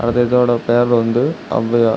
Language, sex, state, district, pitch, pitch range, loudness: Tamil, male, Tamil Nadu, Kanyakumari, 120 Hz, 115-120 Hz, -15 LUFS